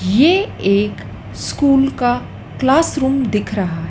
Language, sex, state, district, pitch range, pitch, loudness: Hindi, female, Madhya Pradesh, Dhar, 200-275 Hz, 245 Hz, -16 LUFS